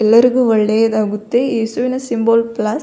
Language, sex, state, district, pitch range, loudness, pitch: Kannada, female, Karnataka, Belgaum, 215-245 Hz, -15 LUFS, 230 Hz